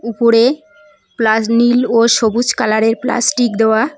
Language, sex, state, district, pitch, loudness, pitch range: Bengali, female, West Bengal, Cooch Behar, 230 Hz, -13 LUFS, 220-245 Hz